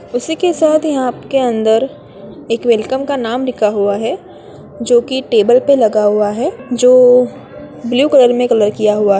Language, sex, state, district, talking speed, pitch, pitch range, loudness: Hindi, female, Bihar, Madhepura, 175 wpm, 245 Hz, 220-265 Hz, -13 LUFS